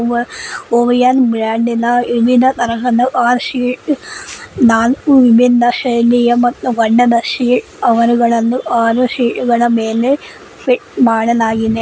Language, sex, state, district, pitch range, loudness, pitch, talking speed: Kannada, female, Karnataka, Koppal, 235-250 Hz, -13 LUFS, 240 Hz, 65 wpm